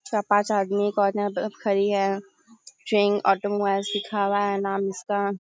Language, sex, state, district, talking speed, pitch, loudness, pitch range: Hindi, female, Bihar, Sitamarhi, 155 wpm, 200 Hz, -24 LUFS, 195-205 Hz